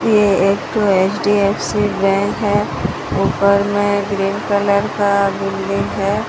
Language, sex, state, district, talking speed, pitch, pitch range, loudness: Hindi, female, Odisha, Sambalpur, 115 wpm, 200 Hz, 195-205 Hz, -16 LUFS